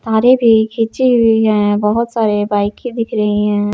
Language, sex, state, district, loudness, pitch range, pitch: Hindi, female, Jharkhand, Palamu, -14 LUFS, 210-230 Hz, 220 Hz